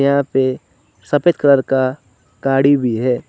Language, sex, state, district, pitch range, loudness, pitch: Hindi, male, West Bengal, Alipurduar, 125-140 Hz, -16 LUFS, 130 Hz